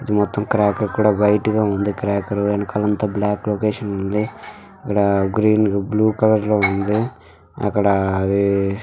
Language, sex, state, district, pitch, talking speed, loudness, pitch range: Telugu, female, Andhra Pradesh, Visakhapatnam, 105 Hz, 135 wpm, -19 LUFS, 100-105 Hz